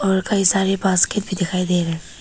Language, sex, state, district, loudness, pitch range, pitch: Hindi, female, Arunachal Pradesh, Papum Pare, -18 LUFS, 180-195 Hz, 190 Hz